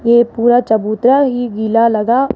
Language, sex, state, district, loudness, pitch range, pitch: Hindi, female, Rajasthan, Jaipur, -13 LUFS, 225-245 Hz, 235 Hz